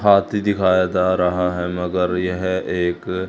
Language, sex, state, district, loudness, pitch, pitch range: Hindi, male, Haryana, Charkhi Dadri, -19 LUFS, 90 Hz, 90-95 Hz